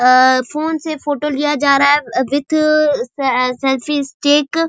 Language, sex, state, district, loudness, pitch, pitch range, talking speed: Hindi, female, Bihar, Saharsa, -15 LUFS, 290 Hz, 265-300 Hz, 165 wpm